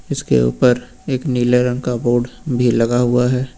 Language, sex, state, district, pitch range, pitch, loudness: Hindi, male, Uttar Pradesh, Lucknow, 120-125 Hz, 125 Hz, -17 LUFS